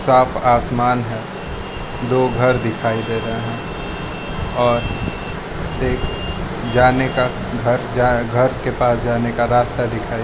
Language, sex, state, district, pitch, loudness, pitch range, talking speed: Hindi, male, Arunachal Pradesh, Lower Dibang Valley, 120 Hz, -18 LUFS, 115-125 Hz, 130 wpm